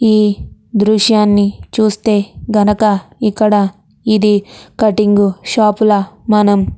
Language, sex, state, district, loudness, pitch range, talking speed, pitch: Telugu, female, Andhra Pradesh, Chittoor, -13 LUFS, 205-215 Hz, 95 wpm, 210 Hz